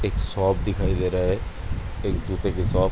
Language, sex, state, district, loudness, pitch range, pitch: Hindi, male, Uttar Pradesh, Budaun, -25 LUFS, 90-100 Hz, 95 Hz